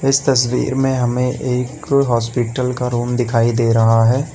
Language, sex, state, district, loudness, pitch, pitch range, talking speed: Hindi, male, Uttar Pradesh, Lalitpur, -16 LUFS, 125 Hz, 120-135 Hz, 165 wpm